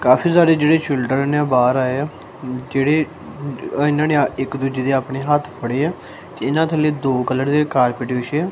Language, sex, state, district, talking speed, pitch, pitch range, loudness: Punjabi, male, Punjab, Kapurthala, 185 wpm, 140 Hz, 130-150 Hz, -18 LUFS